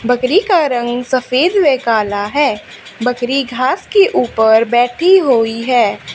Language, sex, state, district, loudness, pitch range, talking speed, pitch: Hindi, female, Haryana, Charkhi Dadri, -13 LUFS, 240-290 Hz, 135 wpm, 250 Hz